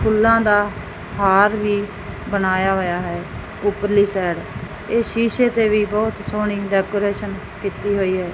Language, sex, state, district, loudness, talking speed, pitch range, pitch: Punjabi, male, Punjab, Fazilka, -19 LUFS, 135 wpm, 190-210 Hz, 205 Hz